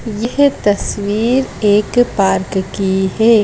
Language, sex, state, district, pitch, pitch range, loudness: Hindi, female, Madhya Pradesh, Bhopal, 210 Hz, 195-235 Hz, -15 LUFS